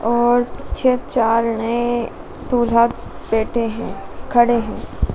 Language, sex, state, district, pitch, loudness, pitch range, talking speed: Hindi, female, Madhya Pradesh, Dhar, 235 Hz, -19 LUFS, 230-240 Hz, 105 wpm